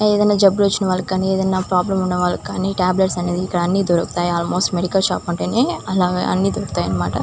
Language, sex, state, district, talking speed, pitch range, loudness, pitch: Telugu, female, Andhra Pradesh, Chittoor, 175 wpm, 175-195 Hz, -18 LUFS, 185 Hz